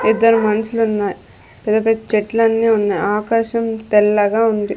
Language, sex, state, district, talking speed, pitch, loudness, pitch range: Telugu, female, Andhra Pradesh, Sri Satya Sai, 115 wpm, 220 Hz, -16 LUFS, 210-225 Hz